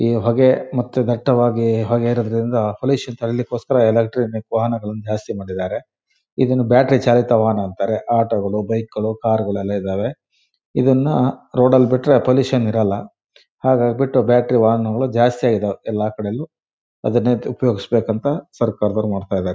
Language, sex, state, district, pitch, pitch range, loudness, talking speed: Kannada, male, Karnataka, Shimoga, 115 Hz, 110-125 Hz, -18 LUFS, 115 wpm